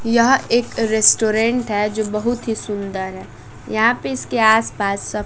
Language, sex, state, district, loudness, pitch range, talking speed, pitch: Hindi, female, Bihar, West Champaran, -17 LUFS, 205-235 Hz, 160 wpm, 220 Hz